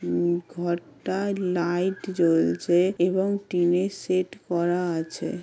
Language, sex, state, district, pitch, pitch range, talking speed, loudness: Bengali, female, West Bengal, Jhargram, 175 Hz, 170-185 Hz, 100 wpm, -25 LUFS